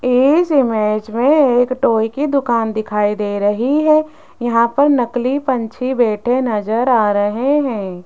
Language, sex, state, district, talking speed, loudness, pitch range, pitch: Hindi, female, Rajasthan, Jaipur, 150 wpm, -16 LUFS, 215-275 Hz, 245 Hz